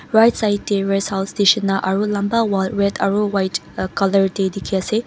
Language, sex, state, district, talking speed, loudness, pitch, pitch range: Nagamese, female, Mizoram, Aizawl, 175 wpm, -18 LUFS, 200 Hz, 195-210 Hz